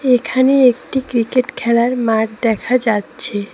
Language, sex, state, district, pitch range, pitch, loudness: Bengali, female, West Bengal, Cooch Behar, 225-255 Hz, 245 Hz, -16 LUFS